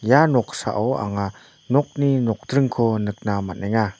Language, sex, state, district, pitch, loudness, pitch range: Garo, male, Meghalaya, North Garo Hills, 110 Hz, -21 LUFS, 100-135 Hz